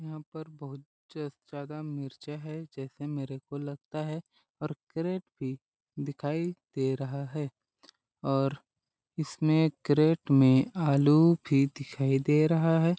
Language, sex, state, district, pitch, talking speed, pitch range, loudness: Hindi, male, Chhattisgarh, Balrampur, 145 Hz, 135 wpm, 135-155 Hz, -29 LUFS